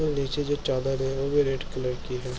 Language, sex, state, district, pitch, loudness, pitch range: Hindi, male, Bihar, Gopalganj, 135 Hz, -27 LUFS, 130-145 Hz